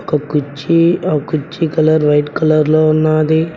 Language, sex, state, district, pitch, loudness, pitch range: Telugu, male, Telangana, Mahabubabad, 155 Hz, -14 LUFS, 150-160 Hz